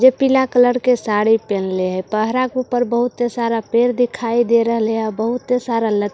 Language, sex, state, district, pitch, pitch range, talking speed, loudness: Hindi, female, Bihar, Katihar, 235 Hz, 220-245 Hz, 255 wpm, -17 LUFS